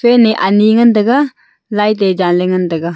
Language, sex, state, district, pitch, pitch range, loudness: Wancho, female, Arunachal Pradesh, Longding, 210 Hz, 185-235 Hz, -12 LUFS